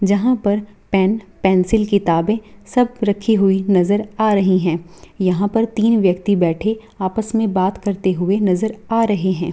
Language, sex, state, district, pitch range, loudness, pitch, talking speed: Hindi, female, Bihar, Purnia, 185-220 Hz, -17 LUFS, 205 Hz, 150 wpm